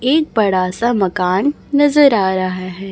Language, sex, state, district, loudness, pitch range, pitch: Hindi, male, Chhattisgarh, Raipur, -15 LUFS, 185-280 Hz, 195 Hz